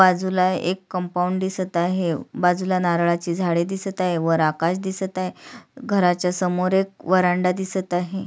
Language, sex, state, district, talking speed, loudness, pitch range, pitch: Marathi, female, Maharashtra, Sindhudurg, 145 wpm, -22 LUFS, 175-190 Hz, 180 Hz